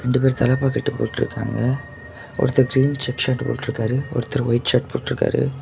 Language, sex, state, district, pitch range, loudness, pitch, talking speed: Tamil, male, Tamil Nadu, Kanyakumari, 120-140 Hz, -21 LUFS, 130 Hz, 140 wpm